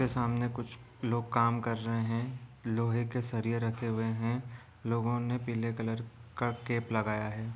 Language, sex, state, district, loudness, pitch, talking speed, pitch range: Hindi, male, Bihar, Gopalganj, -33 LUFS, 115 Hz, 175 wpm, 115-120 Hz